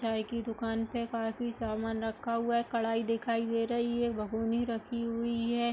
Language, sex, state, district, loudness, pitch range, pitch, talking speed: Hindi, female, Uttar Pradesh, Hamirpur, -33 LUFS, 225-235 Hz, 230 Hz, 190 wpm